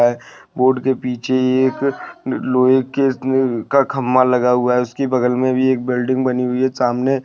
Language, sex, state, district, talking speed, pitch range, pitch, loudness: Hindi, male, West Bengal, Dakshin Dinajpur, 175 wpm, 125-130 Hz, 130 Hz, -17 LUFS